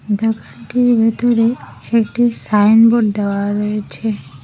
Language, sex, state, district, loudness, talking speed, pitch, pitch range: Bengali, female, West Bengal, Cooch Behar, -15 LUFS, 80 wpm, 220 Hz, 205-235 Hz